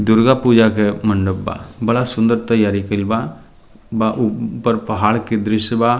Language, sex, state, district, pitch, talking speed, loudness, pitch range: Bhojpuri, male, Bihar, Muzaffarpur, 110 Hz, 170 wpm, -17 LUFS, 105-115 Hz